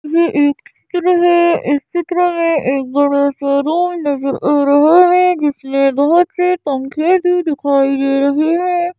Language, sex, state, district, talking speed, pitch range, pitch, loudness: Hindi, female, Madhya Pradesh, Bhopal, 155 wpm, 280-350 Hz, 305 Hz, -14 LUFS